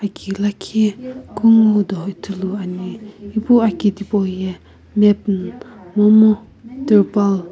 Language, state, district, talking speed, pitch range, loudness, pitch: Sumi, Nagaland, Kohima, 95 wpm, 195-220 Hz, -17 LUFS, 205 Hz